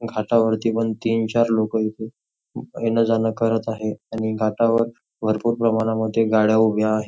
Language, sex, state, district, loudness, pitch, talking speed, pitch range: Marathi, male, Maharashtra, Nagpur, -21 LUFS, 110 Hz, 135 wpm, 110-115 Hz